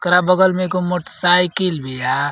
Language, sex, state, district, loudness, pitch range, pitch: Bhojpuri, male, Uttar Pradesh, Ghazipur, -16 LUFS, 165-180 Hz, 180 Hz